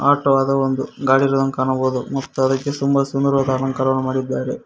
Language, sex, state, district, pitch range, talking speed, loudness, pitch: Kannada, male, Karnataka, Koppal, 130-140 Hz, 130 wpm, -19 LUFS, 135 Hz